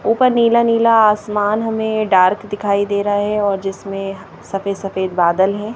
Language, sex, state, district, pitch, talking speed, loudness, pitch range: Hindi, male, Madhya Pradesh, Bhopal, 205 Hz, 165 wpm, -16 LUFS, 195-220 Hz